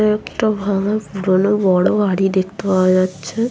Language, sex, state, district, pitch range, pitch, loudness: Bengali, female, West Bengal, Jhargram, 185-210 Hz, 195 Hz, -17 LUFS